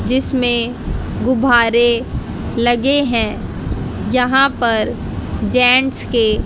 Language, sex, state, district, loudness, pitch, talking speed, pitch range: Hindi, female, Haryana, Jhajjar, -16 LUFS, 245 Hz, 75 wpm, 235-260 Hz